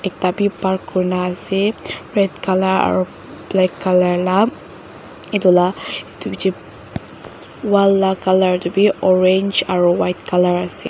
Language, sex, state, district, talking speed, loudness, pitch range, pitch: Nagamese, female, Nagaland, Dimapur, 145 wpm, -17 LUFS, 180-195 Hz, 185 Hz